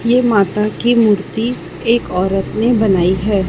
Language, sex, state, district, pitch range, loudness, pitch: Hindi, male, Chhattisgarh, Raipur, 190-235 Hz, -15 LUFS, 210 Hz